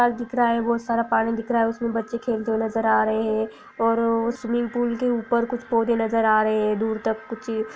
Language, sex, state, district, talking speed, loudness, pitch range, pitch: Hindi, female, Chhattisgarh, Bilaspur, 245 wpm, -23 LUFS, 220-235 Hz, 230 Hz